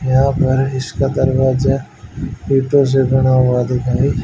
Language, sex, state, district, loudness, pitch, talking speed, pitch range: Hindi, male, Haryana, Rohtak, -15 LUFS, 130 Hz, 125 wpm, 125-135 Hz